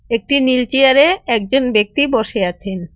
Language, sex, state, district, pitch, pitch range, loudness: Bengali, female, West Bengal, Cooch Behar, 245 Hz, 210-270 Hz, -14 LUFS